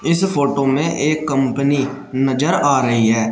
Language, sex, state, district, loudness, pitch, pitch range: Hindi, male, Uttar Pradesh, Shamli, -17 LUFS, 140 Hz, 130-145 Hz